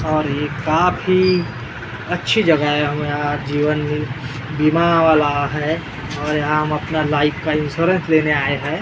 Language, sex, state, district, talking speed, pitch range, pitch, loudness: Hindi, male, Maharashtra, Gondia, 155 wpm, 145-155 Hz, 150 Hz, -18 LUFS